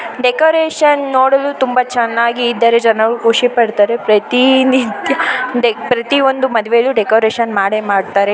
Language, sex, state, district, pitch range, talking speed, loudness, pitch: Kannada, female, Karnataka, Shimoga, 225-260 Hz, 95 wpm, -13 LUFS, 240 Hz